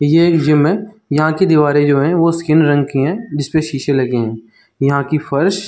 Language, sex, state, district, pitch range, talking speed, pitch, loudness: Hindi, male, Chhattisgarh, Raigarh, 140-165 Hz, 230 wpm, 150 Hz, -14 LUFS